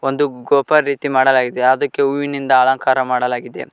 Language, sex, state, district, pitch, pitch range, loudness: Kannada, male, Karnataka, Koppal, 130 Hz, 125-140 Hz, -16 LUFS